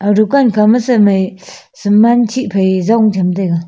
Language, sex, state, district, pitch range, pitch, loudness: Wancho, female, Arunachal Pradesh, Longding, 190-230 Hz, 210 Hz, -12 LUFS